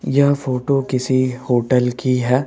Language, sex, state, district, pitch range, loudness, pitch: Hindi, male, Rajasthan, Jaipur, 125-135 Hz, -18 LUFS, 130 Hz